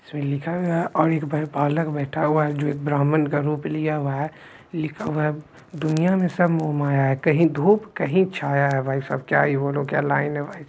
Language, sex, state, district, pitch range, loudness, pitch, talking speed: Hindi, male, Bihar, Supaul, 145-160 Hz, -22 LUFS, 150 Hz, 185 wpm